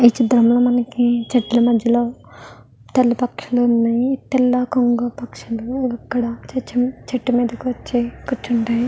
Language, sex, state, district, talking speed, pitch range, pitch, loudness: Telugu, female, Andhra Pradesh, Guntur, 120 wpm, 235-250 Hz, 245 Hz, -19 LUFS